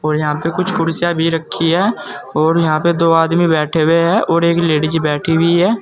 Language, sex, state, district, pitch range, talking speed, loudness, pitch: Hindi, male, Uttar Pradesh, Saharanpur, 160-170 Hz, 225 wpm, -15 LUFS, 165 Hz